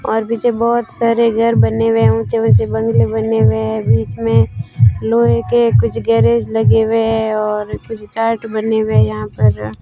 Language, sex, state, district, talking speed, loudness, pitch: Hindi, female, Rajasthan, Bikaner, 175 wpm, -14 LUFS, 115 Hz